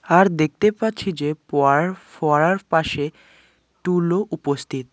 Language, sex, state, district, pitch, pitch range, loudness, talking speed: Bengali, male, West Bengal, Alipurduar, 160 Hz, 145-185 Hz, -20 LUFS, 95 wpm